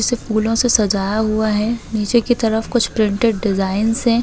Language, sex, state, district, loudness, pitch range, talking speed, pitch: Hindi, female, Chhattisgarh, Bastar, -17 LUFS, 210-235 Hz, 185 wpm, 220 Hz